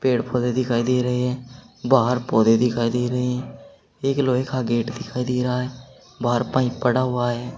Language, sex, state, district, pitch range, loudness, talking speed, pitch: Hindi, male, Uttar Pradesh, Saharanpur, 120-125 Hz, -22 LUFS, 200 wpm, 125 Hz